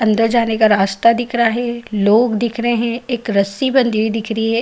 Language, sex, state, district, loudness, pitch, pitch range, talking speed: Hindi, female, Bihar, Saharsa, -16 LUFS, 230 Hz, 220-235 Hz, 235 wpm